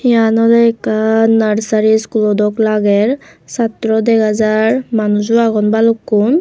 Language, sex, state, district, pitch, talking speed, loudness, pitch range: Chakma, female, Tripura, Unakoti, 220 Hz, 120 wpm, -13 LUFS, 215-230 Hz